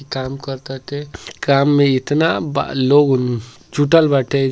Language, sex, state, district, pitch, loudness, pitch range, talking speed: Bhojpuri, male, Uttar Pradesh, Gorakhpur, 140 Hz, -16 LUFS, 130-145 Hz, 145 wpm